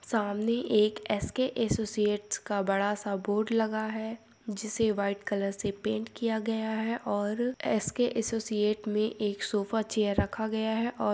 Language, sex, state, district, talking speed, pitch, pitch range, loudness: Hindi, female, Andhra Pradesh, Anantapur, 155 wpm, 215 Hz, 205-225 Hz, -30 LUFS